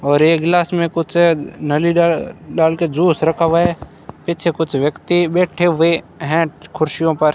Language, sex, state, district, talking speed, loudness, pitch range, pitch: Hindi, male, Rajasthan, Bikaner, 170 wpm, -16 LUFS, 155-170 Hz, 165 Hz